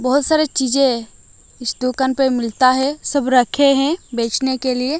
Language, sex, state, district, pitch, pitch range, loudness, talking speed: Hindi, female, Odisha, Malkangiri, 260 Hz, 255-275 Hz, -17 LUFS, 170 wpm